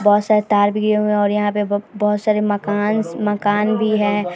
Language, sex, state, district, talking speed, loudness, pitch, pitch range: Hindi, female, Bihar, Vaishali, 220 wpm, -18 LUFS, 210 Hz, 205-210 Hz